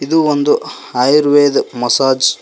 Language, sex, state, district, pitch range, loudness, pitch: Kannada, male, Karnataka, Koppal, 130-150 Hz, -13 LUFS, 145 Hz